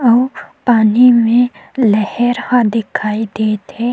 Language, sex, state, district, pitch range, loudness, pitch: Chhattisgarhi, female, Chhattisgarh, Sukma, 215-245 Hz, -14 LUFS, 235 Hz